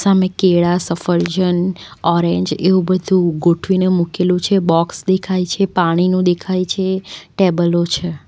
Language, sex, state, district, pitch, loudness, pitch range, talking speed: Gujarati, female, Gujarat, Valsad, 180 Hz, -16 LUFS, 170-185 Hz, 125 wpm